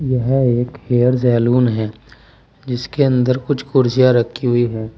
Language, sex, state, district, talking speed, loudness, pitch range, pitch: Hindi, male, Uttar Pradesh, Saharanpur, 145 wpm, -16 LUFS, 120-130 Hz, 125 Hz